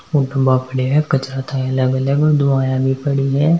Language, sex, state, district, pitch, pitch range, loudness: Hindi, male, Rajasthan, Nagaur, 135 Hz, 130-140 Hz, -17 LUFS